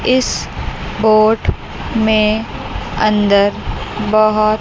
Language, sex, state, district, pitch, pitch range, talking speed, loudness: Hindi, female, Chandigarh, Chandigarh, 215 Hz, 215-220 Hz, 65 wpm, -15 LUFS